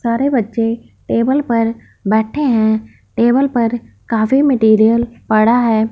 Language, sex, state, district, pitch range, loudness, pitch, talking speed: Hindi, female, Punjab, Fazilka, 220-245 Hz, -15 LUFS, 230 Hz, 120 wpm